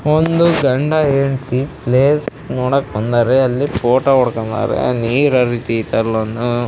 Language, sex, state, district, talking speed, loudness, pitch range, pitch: Kannada, female, Karnataka, Raichur, 100 wpm, -15 LUFS, 120-140 Hz, 125 Hz